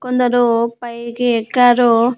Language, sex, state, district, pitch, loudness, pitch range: Telugu, female, Andhra Pradesh, Annamaya, 240 Hz, -15 LUFS, 235-245 Hz